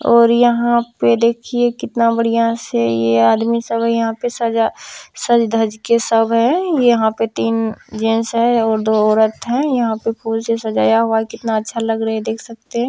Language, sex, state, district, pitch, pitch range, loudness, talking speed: Maithili, female, Bihar, Madhepura, 230 Hz, 225-235 Hz, -16 LUFS, 185 wpm